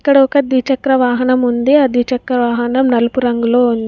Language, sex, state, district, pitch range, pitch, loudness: Telugu, female, Telangana, Komaram Bheem, 240-265 Hz, 250 Hz, -13 LUFS